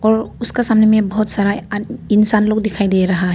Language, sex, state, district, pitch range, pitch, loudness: Hindi, female, Arunachal Pradesh, Papum Pare, 200-220 Hz, 215 Hz, -15 LUFS